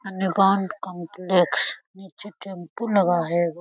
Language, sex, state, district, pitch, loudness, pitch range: Hindi, female, Bihar, Lakhisarai, 190 Hz, -22 LUFS, 175-195 Hz